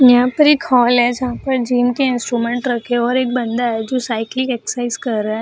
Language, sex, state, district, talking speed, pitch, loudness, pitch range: Hindi, female, Bihar, Jahanabad, 255 wpm, 245 Hz, -16 LUFS, 240-255 Hz